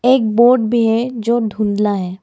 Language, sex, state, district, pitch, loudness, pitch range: Hindi, female, Arunachal Pradesh, Lower Dibang Valley, 230 Hz, -15 LUFS, 210-240 Hz